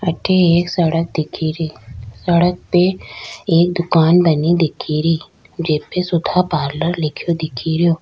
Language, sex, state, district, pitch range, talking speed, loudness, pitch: Rajasthani, female, Rajasthan, Churu, 155-175 Hz, 110 wpm, -17 LUFS, 165 Hz